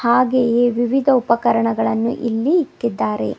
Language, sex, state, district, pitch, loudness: Kannada, female, Karnataka, Bidar, 235 Hz, -17 LUFS